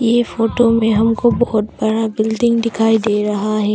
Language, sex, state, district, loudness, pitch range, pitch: Hindi, female, Arunachal Pradesh, Longding, -16 LUFS, 215-230 Hz, 225 Hz